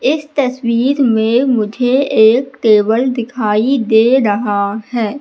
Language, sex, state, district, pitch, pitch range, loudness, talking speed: Hindi, female, Madhya Pradesh, Katni, 235 Hz, 220-260 Hz, -13 LUFS, 115 wpm